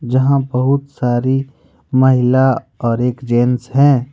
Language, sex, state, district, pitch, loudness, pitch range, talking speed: Hindi, male, Jharkhand, Ranchi, 130 Hz, -15 LUFS, 125-135 Hz, 115 wpm